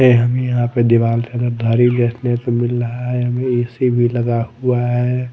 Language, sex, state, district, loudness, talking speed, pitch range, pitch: Hindi, male, Odisha, Malkangiri, -17 LUFS, 190 wpm, 120-125 Hz, 120 Hz